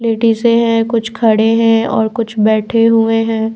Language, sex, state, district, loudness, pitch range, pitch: Hindi, female, Bihar, Patna, -13 LUFS, 220-230 Hz, 225 Hz